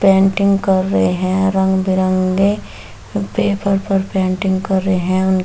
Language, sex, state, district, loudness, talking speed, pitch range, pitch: Hindi, female, Bihar, Samastipur, -16 LUFS, 130 wpm, 185-195 Hz, 190 Hz